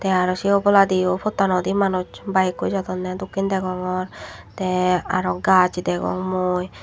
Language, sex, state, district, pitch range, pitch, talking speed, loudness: Chakma, female, Tripura, Dhalai, 180-195 Hz, 185 Hz, 125 wpm, -21 LUFS